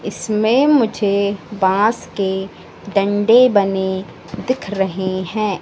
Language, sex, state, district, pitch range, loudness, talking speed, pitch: Hindi, female, Madhya Pradesh, Katni, 190-220 Hz, -17 LUFS, 95 wpm, 200 Hz